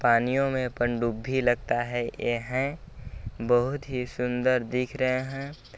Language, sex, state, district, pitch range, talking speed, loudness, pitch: Hindi, male, Chhattisgarh, Balrampur, 120-130 Hz, 125 wpm, -27 LUFS, 125 Hz